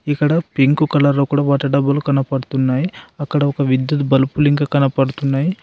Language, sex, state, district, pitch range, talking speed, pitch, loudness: Telugu, male, Telangana, Adilabad, 135-145 Hz, 130 wpm, 140 Hz, -17 LUFS